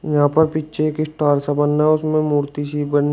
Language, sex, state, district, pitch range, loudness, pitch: Hindi, male, Uttar Pradesh, Shamli, 145-155 Hz, -18 LUFS, 150 Hz